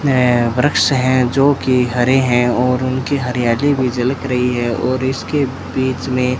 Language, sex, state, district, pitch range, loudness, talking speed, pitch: Hindi, male, Rajasthan, Bikaner, 125-135 Hz, -16 LUFS, 180 wpm, 130 Hz